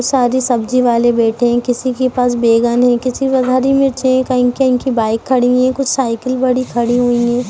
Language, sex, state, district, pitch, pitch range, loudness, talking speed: Hindi, female, Bihar, East Champaran, 250 Hz, 240-255 Hz, -14 LUFS, 225 wpm